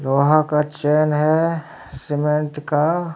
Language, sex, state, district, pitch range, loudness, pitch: Hindi, male, Bihar, Katihar, 150-155 Hz, -19 LUFS, 150 Hz